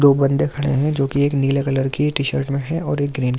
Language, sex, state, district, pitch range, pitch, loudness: Hindi, male, Delhi, New Delhi, 135-145 Hz, 140 Hz, -19 LUFS